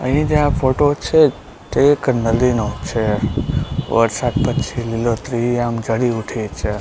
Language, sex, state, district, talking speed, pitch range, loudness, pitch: Gujarati, male, Gujarat, Gandhinagar, 150 wpm, 115-140 Hz, -18 LUFS, 120 Hz